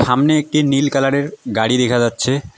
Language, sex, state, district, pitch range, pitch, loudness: Bengali, female, West Bengal, Alipurduar, 120-145 Hz, 135 Hz, -16 LUFS